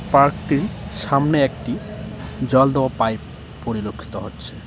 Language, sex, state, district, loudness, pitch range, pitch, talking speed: Bengali, male, West Bengal, Cooch Behar, -20 LUFS, 130-140 Hz, 135 Hz, 105 wpm